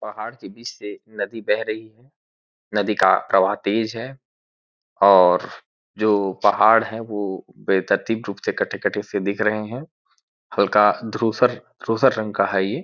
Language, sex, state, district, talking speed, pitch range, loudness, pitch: Hindi, male, Chhattisgarh, Korba, 135 wpm, 100-115 Hz, -20 LUFS, 105 Hz